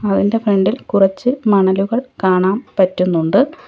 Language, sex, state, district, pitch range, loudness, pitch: Malayalam, female, Kerala, Kollam, 190-225 Hz, -15 LUFS, 195 Hz